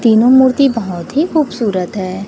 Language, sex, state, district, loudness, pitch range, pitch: Hindi, female, Chhattisgarh, Raipur, -13 LUFS, 190-270 Hz, 230 Hz